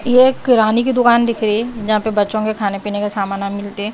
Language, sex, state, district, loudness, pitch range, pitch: Hindi, female, Bihar, Kaimur, -16 LUFS, 205-235 Hz, 215 Hz